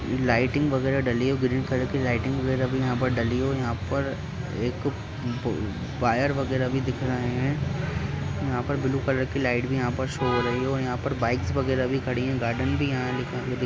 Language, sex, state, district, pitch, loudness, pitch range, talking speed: Hindi, male, Bihar, Jahanabad, 130 Hz, -26 LUFS, 125-135 Hz, 205 wpm